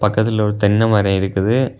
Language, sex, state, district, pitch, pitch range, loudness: Tamil, male, Tamil Nadu, Kanyakumari, 105 Hz, 100-110 Hz, -16 LUFS